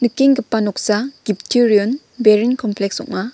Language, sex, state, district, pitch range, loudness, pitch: Garo, female, Meghalaya, West Garo Hills, 210-250 Hz, -17 LUFS, 220 Hz